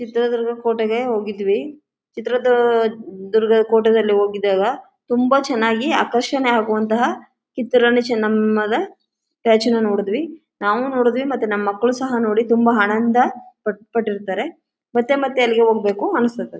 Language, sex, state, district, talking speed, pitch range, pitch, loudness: Kannada, female, Karnataka, Chamarajanagar, 110 wpm, 215-250 Hz, 235 Hz, -18 LUFS